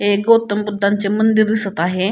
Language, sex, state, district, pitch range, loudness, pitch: Marathi, female, Maharashtra, Pune, 200-215 Hz, -16 LUFS, 205 Hz